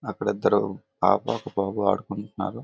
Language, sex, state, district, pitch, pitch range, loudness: Telugu, male, Andhra Pradesh, Visakhapatnam, 100 Hz, 100-115 Hz, -25 LUFS